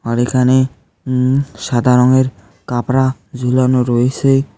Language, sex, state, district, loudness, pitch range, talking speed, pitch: Bengali, male, West Bengal, Cooch Behar, -15 LUFS, 120-130 Hz, 105 wpm, 125 Hz